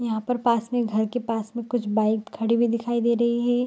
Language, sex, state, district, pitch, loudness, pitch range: Hindi, female, Bihar, Saharsa, 235 Hz, -24 LUFS, 220-240 Hz